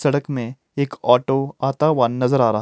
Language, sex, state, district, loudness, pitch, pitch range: Hindi, male, Himachal Pradesh, Shimla, -20 LUFS, 135 Hz, 125-140 Hz